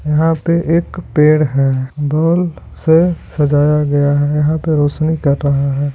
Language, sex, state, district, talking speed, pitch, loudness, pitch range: Hindi, male, Bihar, Begusarai, 160 wpm, 150 Hz, -14 LUFS, 145-160 Hz